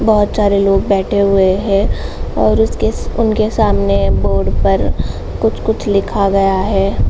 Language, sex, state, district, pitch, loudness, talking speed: Hindi, female, Uttar Pradesh, Jalaun, 195 Hz, -14 LUFS, 145 wpm